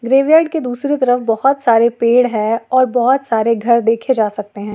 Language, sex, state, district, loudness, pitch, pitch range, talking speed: Hindi, female, Jharkhand, Ranchi, -14 LUFS, 240 Hz, 225-260 Hz, 200 wpm